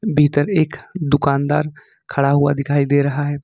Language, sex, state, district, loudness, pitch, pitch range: Hindi, male, Jharkhand, Ranchi, -18 LUFS, 145 Hz, 140-150 Hz